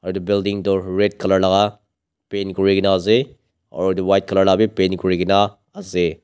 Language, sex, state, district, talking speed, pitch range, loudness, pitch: Nagamese, male, Nagaland, Dimapur, 175 wpm, 95-100 Hz, -18 LUFS, 95 Hz